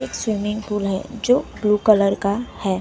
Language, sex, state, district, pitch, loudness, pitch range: Hindi, female, Maharashtra, Mumbai Suburban, 210 Hz, -20 LUFS, 200-220 Hz